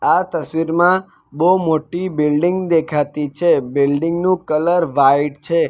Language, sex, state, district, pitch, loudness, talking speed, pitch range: Gujarati, male, Gujarat, Valsad, 165 Hz, -17 LUFS, 125 wpm, 150-175 Hz